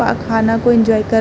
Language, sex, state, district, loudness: Hindi, female, Uttar Pradesh, Muzaffarnagar, -14 LUFS